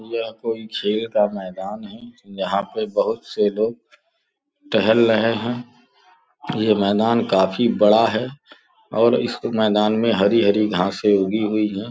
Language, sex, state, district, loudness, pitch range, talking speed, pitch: Hindi, male, Uttar Pradesh, Gorakhpur, -20 LUFS, 105-120 Hz, 140 wpm, 115 Hz